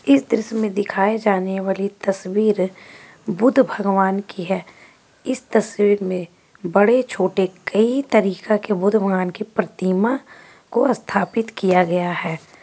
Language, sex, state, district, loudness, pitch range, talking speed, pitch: Hindi, female, Bihar, Gaya, -20 LUFS, 190-220 Hz, 115 wpm, 200 Hz